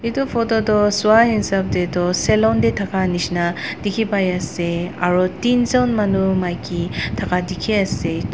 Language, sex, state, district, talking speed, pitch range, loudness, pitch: Nagamese, female, Nagaland, Dimapur, 145 wpm, 175-215 Hz, -18 LUFS, 190 Hz